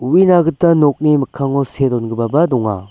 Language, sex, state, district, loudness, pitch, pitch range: Garo, male, Meghalaya, West Garo Hills, -14 LUFS, 140 Hz, 125-165 Hz